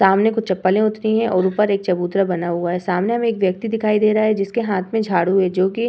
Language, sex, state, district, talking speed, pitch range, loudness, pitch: Hindi, female, Uttar Pradesh, Hamirpur, 285 wpm, 185-220 Hz, -18 LUFS, 195 Hz